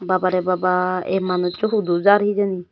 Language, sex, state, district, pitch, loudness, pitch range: Chakma, female, Tripura, Unakoti, 185 Hz, -19 LUFS, 180-200 Hz